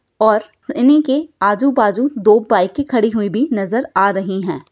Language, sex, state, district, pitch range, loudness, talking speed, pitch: Hindi, female, Bihar, Saharsa, 205-275 Hz, -15 LUFS, 180 wpm, 220 Hz